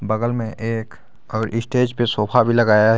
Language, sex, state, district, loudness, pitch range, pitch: Hindi, male, Jharkhand, Garhwa, -19 LUFS, 110-120 Hz, 115 Hz